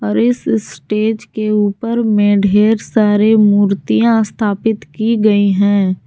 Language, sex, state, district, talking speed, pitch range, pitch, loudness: Hindi, female, Jharkhand, Garhwa, 130 wpm, 205-220 Hz, 210 Hz, -14 LUFS